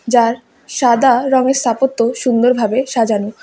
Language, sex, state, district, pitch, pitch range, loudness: Bengali, female, West Bengal, Alipurduar, 240 Hz, 230-260 Hz, -14 LUFS